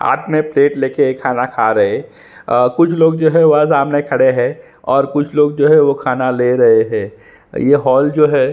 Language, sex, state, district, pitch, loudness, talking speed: Hindi, male, Chhattisgarh, Sukma, 150 Hz, -13 LUFS, 220 wpm